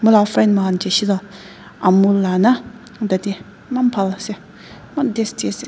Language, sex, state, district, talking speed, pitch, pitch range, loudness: Nagamese, female, Nagaland, Dimapur, 170 wpm, 200 Hz, 195-225 Hz, -18 LUFS